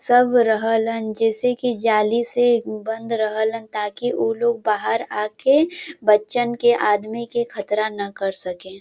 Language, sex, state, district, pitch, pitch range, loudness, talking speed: Bhojpuri, female, Uttar Pradesh, Varanasi, 225 Hz, 210-240 Hz, -20 LUFS, 150 wpm